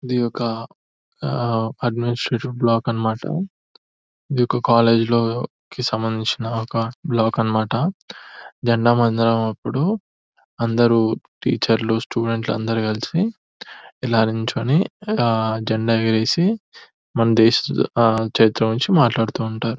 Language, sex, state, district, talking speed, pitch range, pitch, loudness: Telugu, male, Telangana, Nalgonda, 90 wpm, 110-125 Hz, 115 Hz, -20 LUFS